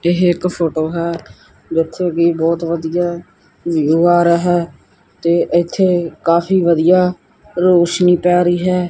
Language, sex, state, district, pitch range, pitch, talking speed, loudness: Punjabi, male, Punjab, Kapurthala, 170-180 Hz, 170 Hz, 135 wpm, -15 LUFS